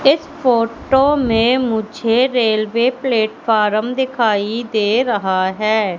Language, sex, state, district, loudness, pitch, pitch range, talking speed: Hindi, female, Madhya Pradesh, Katni, -16 LUFS, 230 Hz, 215-255 Hz, 100 wpm